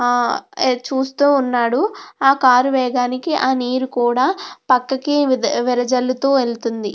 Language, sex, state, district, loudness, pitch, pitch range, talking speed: Telugu, female, Andhra Pradesh, Krishna, -17 LUFS, 255 Hz, 245-270 Hz, 95 wpm